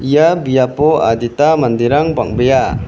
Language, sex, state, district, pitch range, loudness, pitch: Garo, male, Meghalaya, West Garo Hills, 120-155 Hz, -13 LUFS, 130 Hz